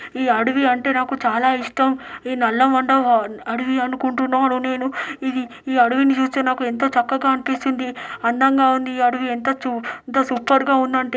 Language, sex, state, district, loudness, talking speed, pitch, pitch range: Telugu, male, Telangana, Nalgonda, -19 LUFS, 155 wpm, 260 Hz, 245-265 Hz